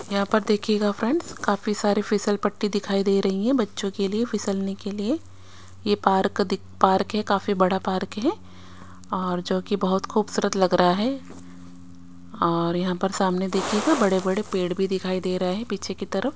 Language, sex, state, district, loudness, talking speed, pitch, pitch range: Hindi, female, Chandigarh, Chandigarh, -24 LUFS, 185 wpm, 195 Hz, 185-210 Hz